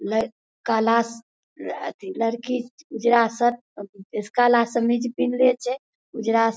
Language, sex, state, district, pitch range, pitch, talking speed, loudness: Maithili, female, Bihar, Madhepura, 225-245 Hz, 235 Hz, 110 wpm, -23 LUFS